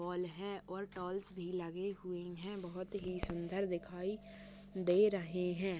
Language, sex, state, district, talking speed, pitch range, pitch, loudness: Hindi, male, Chhattisgarh, Rajnandgaon, 155 wpm, 180-200 Hz, 185 Hz, -40 LUFS